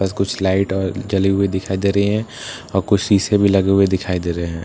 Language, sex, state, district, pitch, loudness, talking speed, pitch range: Hindi, male, Bihar, Katihar, 95 Hz, -18 LUFS, 260 wpm, 95-100 Hz